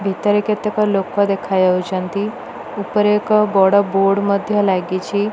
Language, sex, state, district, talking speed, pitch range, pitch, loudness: Odia, female, Odisha, Nuapada, 110 wpm, 195-210 Hz, 200 Hz, -17 LUFS